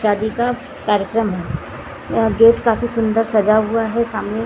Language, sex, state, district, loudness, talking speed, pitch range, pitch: Hindi, female, Maharashtra, Gondia, -17 LUFS, 150 wpm, 205-230 Hz, 220 Hz